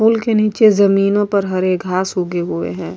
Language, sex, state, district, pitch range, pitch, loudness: Urdu, female, Uttar Pradesh, Budaun, 185-215 Hz, 195 Hz, -15 LUFS